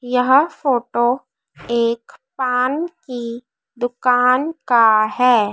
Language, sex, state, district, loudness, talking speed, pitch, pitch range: Hindi, female, Madhya Pradesh, Dhar, -17 LUFS, 85 wpm, 250 Hz, 235-260 Hz